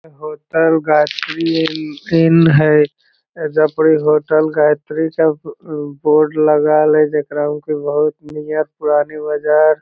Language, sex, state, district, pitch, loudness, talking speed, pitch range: Magahi, male, Bihar, Lakhisarai, 155 Hz, -15 LUFS, 105 wpm, 150-155 Hz